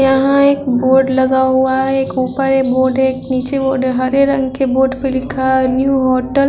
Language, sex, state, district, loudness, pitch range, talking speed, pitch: Hindi, female, Bihar, Vaishali, -14 LUFS, 260-270 Hz, 230 wpm, 265 Hz